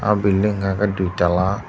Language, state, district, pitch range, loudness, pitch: Kokborok, Tripura, Dhalai, 95-105 Hz, -19 LUFS, 95 Hz